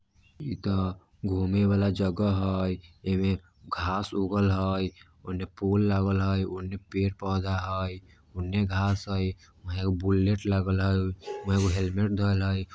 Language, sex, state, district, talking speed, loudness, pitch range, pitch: Maithili, male, Bihar, Vaishali, 140 wpm, -28 LUFS, 95-100 Hz, 95 Hz